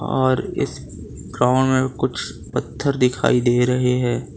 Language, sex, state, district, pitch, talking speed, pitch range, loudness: Hindi, male, Gujarat, Valsad, 125 Hz, 135 wpm, 125-130 Hz, -20 LUFS